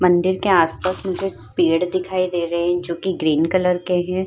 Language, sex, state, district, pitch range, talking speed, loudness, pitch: Hindi, female, Uttar Pradesh, Varanasi, 170-185 Hz, 210 wpm, -20 LUFS, 180 Hz